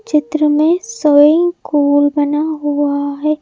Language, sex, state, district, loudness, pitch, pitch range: Hindi, male, Madhya Pradesh, Bhopal, -14 LUFS, 300 Hz, 290-315 Hz